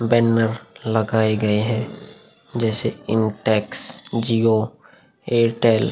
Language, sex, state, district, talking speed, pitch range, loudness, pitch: Hindi, male, Uttar Pradesh, Hamirpur, 90 wpm, 110-115 Hz, -21 LUFS, 115 Hz